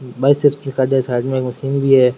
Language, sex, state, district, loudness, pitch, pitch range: Rajasthani, male, Rajasthan, Churu, -17 LUFS, 130 Hz, 125-135 Hz